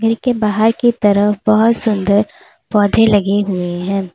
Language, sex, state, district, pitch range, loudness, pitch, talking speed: Hindi, female, Uttar Pradesh, Lalitpur, 200-225 Hz, -14 LUFS, 210 Hz, 160 wpm